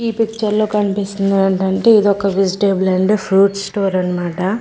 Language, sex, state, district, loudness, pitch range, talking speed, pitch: Telugu, female, Andhra Pradesh, Manyam, -15 LUFS, 190-210 Hz, 155 wpm, 195 Hz